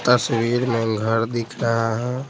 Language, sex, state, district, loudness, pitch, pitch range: Hindi, male, Bihar, Patna, -21 LUFS, 115 Hz, 115-125 Hz